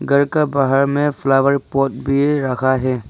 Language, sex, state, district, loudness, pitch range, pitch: Hindi, male, Arunachal Pradesh, Lower Dibang Valley, -17 LUFS, 130-140 Hz, 135 Hz